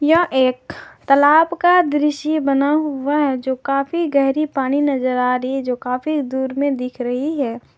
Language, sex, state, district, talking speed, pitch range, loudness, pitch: Hindi, female, Jharkhand, Garhwa, 170 wpm, 260-300 Hz, -18 LUFS, 275 Hz